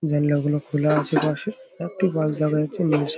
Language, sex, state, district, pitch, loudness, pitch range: Bengali, male, West Bengal, Paschim Medinipur, 150 Hz, -22 LUFS, 150-170 Hz